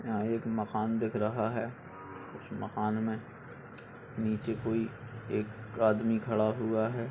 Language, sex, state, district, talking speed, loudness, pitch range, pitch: Hindi, male, Uttar Pradesh, Budaun, 135 wpm, -33 LUFS, 110-115 Hz, 110 Hz